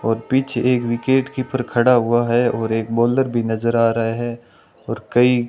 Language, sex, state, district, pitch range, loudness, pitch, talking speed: Hindi, male, Rajasthan, Bikaner, 115-125 Hz, -18 LUFS, 120 Hz, 195 wpm